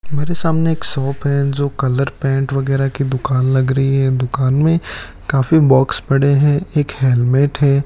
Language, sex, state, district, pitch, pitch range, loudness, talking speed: Hindi, male, Rajasthan, Bikaner, 140 Hz, 135-145 Hz, -16 LUFS, 175 wpm